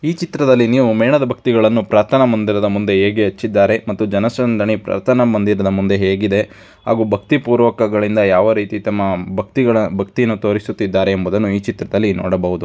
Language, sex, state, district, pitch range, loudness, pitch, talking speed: Kannada, male, Karnataka, Dharwad, 100-115 Hz, -15 LUFS, 105 Hz, 135 wpm